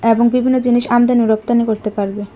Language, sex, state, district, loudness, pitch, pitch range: Bengali, female, Tripura, West Tripura, -15 LUFS, 235 Hz, 215-245 Hz